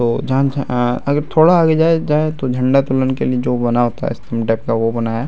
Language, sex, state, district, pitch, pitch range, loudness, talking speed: Hindi, male, Bihar, Araria, 130 Hz, 120-145 Hz, -16 LUFS, 250 wpm